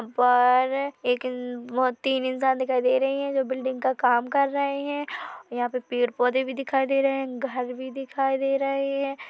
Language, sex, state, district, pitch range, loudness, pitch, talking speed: Hindi, male, Chhattisgarh, Korba, 250-275 Hz, -25 LUFS, 260 Hz, 195 wpm